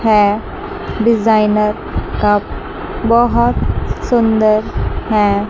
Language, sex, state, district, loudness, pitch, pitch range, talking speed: Hindi, female, Chandigarh, Chandigarh, -15 LUFS, 215 Hz, 210-230 Hz, 65 wpm